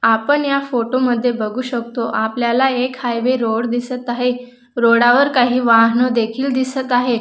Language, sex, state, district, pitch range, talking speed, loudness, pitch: Marathi, female, Maharashtra, Dhule, 235-255 Hz, 160 wpm, -16 LUFS, 245 Hz